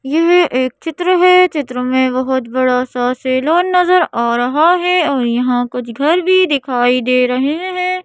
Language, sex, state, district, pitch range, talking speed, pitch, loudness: Hindi, female, Madhya Pradesh, Bhopal, 250-355 Hz, 170 wpm, 265 Hz, -14 LUFS